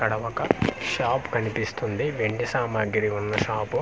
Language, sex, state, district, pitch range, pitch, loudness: Telugu, male, Andhra Pradesh, Manyam, 105-115 Hz, 110 Hz, -26 LUFS